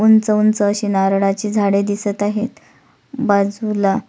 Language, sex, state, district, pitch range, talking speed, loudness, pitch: Marathi, female, Maharashtra, Solapur, 200-215 Hz, 115 wpm, -17 LUFS, 205 Hz